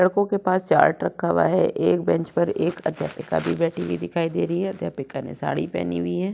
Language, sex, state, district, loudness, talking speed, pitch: Hindi, female, Uttar Pradesh, Budaun, -23 LUFS, 235 wpm, 165 Hz